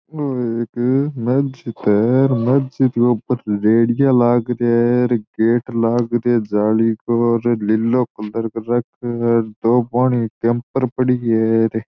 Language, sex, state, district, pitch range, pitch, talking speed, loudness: Marwari, male, Rajasthan, Churu, 115-125 Hz, 120 Hz, 140 wpm, -17 LUFS